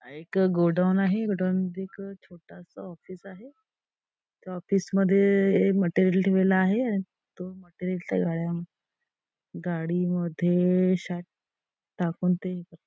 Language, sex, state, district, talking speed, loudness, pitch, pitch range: Marathi, female, Maharashtra, Nagpur, 115 wpm, -25 LUFS, 185 Hz, 175-195 Hz